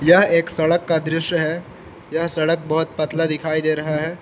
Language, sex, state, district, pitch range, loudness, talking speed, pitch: Hindi, male, Jharkhand, Palamu, 155-170 Hz, -19 LUFS, 200 wpm, 160 Hz